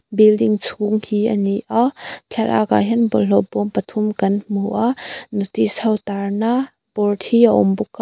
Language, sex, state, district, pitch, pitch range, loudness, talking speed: Mizo, female, Mizoram, Aizawl, 210 Hz, 195-225 Hz, -18 LUFS, 185 wpm